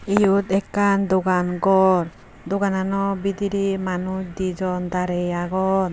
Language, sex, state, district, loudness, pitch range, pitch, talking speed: Chakma, female, Tripura, Unakoti, -21 LUFS, 180-195 Hz, 190 Hz, 100 wpm